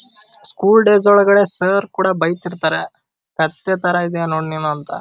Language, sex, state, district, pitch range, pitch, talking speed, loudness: Kannada, male, Karnataka, Dharwad, 160-200 Hz, 180 Hz, 155 wpm, -15 LUFS